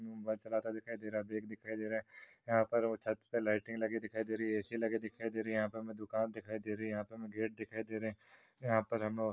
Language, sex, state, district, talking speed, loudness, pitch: Hindi, male, Uttar Pradesh, Hamirpur, 295 wpm, -39 LUFS, 110 Hz